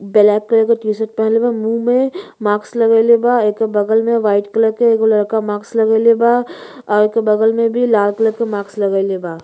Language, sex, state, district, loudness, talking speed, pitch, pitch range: Bhojpuri, female, Uttar Pradesh, Ghazipur, -14 LUFS, 205 wpm, 220 Hz, 210-230 Hz